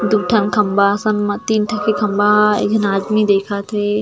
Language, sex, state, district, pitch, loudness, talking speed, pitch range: Chhattisgarhi, female, Chhattisgarh, Jashpur, 210 Hz, -16 LUFS, 210 wpm, 205-210 Hz